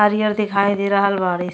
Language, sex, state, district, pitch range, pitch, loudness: Bhojpuri, female, Uttar Pradesh, Deoria, 195-210 Hz, 200 Hz, -18 LUFS